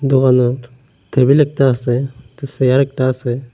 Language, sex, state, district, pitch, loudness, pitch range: Bengali, male, Tripura, Unakoti, 130 Hz, -15 LUFS, 125-135 Hz